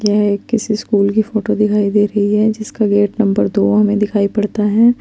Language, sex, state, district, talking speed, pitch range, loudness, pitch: Hindi, female, Chandigarh, Chandigarh, 215 wpm, 205-215 Hz, -15 LUFS, 210 Hz